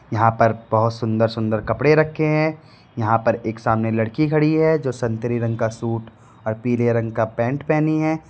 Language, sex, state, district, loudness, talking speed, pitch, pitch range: Hindi, male, Uttar Pradesh, Lalitpur, -20 LUFS, 195 wpm, 115 Hz, 115-155 Hz